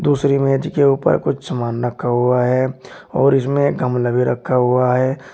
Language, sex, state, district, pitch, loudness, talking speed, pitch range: Hindi, male, Uttar Pradesh, Shamli, 130 Hz, -17 LUFS, 190 wpm, 125-140 Hz